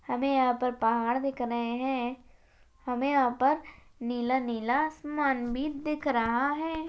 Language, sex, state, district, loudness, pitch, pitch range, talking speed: Hindi, female, Maharashtra, Chandrapur, -29 LUFS, 260 Hz, 240-285 Hz, 150 wpm